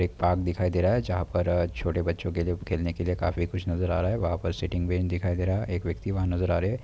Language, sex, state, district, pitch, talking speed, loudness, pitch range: Hindi, male, Uttar Pradesh, Hamirpur, 90 Hz, 305 wpm, -28 LUFS, 85-90 Hz